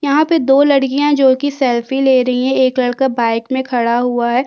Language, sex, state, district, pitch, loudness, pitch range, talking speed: Hindi, female, Chhattisgarh, Kabirdham, 260 Hz, -14 LUFS, 245-280 Hz, 215 wpm